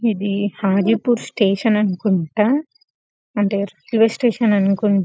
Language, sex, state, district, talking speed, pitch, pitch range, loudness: Telugu, female, Telangana, Karimnagar, 95 wpm, 205 Hz, 200-225 Hz, -18 LUFS